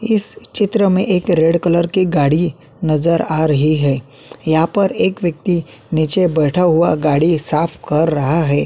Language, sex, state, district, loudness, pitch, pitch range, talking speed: Hindi, male, Uttarakhand, Tehri Garhwal, -15 LUFS, 165 Hz, 155-180 Hz, 165 wpm